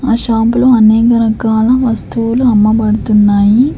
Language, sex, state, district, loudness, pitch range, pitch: Telugu, female, Andhra Pradesh, Sri Satya Sai, -10 LUFS, 220-240 Hz, 225 Hz